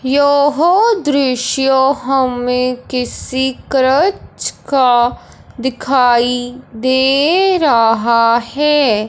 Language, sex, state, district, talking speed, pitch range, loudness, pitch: Hindi, male, Punjab, Fazilka, 65 wpm, 245-285 Hz, -14 LUFS, 260 Hz